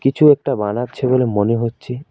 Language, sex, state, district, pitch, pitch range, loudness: Bengali, male, West Bengal, Alipurduar, 125 Hz, 115-135 Hz, -17 LUFS